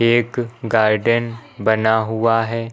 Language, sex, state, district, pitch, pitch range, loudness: Hindi, male, Uttar Pradesh, Lucknow, 115 Hz, 110-115 Hz, -18 LUFS